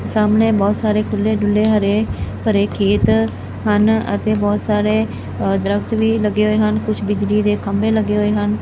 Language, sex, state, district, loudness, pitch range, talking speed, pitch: Punjabi, male, Punjab, Fazilka, -17 LUFS, 200-215 Hz, 165 wpm, 210 Hz